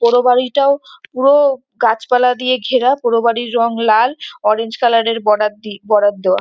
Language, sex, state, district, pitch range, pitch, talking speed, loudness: Bengali, female, West Bengal, North 24 Parganas, 220-255 Hz, 235 Hz, 150 wpm, -14 LUFS